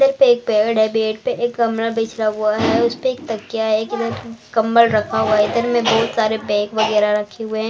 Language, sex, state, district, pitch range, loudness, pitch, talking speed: Hindi, female, Maharashtra, Mumbai Suburban, 215-230 Hz, -18 LUFS, 220 Hz, 240 wpm